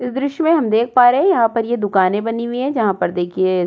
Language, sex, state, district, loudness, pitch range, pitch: Hindi, female, Uttar Pradesh, Jyotiba Phule Nagar, -16 LUFS, 195-250 Hz, 230 Hz